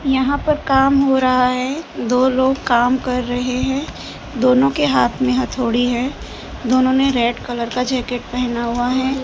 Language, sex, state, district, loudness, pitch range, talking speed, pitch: Hindi, female, Gujarat, Gandhinagar, -17 LUFS, 245-265 Hz, 175 wpm, 255 Hz